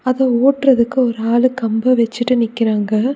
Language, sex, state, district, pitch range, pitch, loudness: Tamil, female, Tamil Nadu, Nilgiris, 230-255 Hz, 240 Hz, -15 LUFS